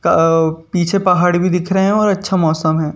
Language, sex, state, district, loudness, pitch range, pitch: Hindi, male, Madhya Pradesh, Bhopal, -15 LUFS, 160-190 Hz, 180 Hz